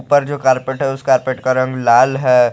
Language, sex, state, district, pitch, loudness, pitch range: Hindi, male, Jharkhand, Garhwa, 130 Hz, -15 LUFS, 130-135 Hz